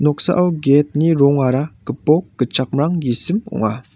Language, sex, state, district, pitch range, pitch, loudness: Garo, male, Meghalaya, West Garo Hills, 135-170 Hz, 150 Hz, -17 LUFS